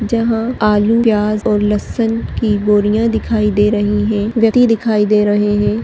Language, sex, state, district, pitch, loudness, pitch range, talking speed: Hindi, female, Chhattisgarh, Rajnandgaon, 215 Hz, -14 LUFS, 210-225 Hz, 175 wpm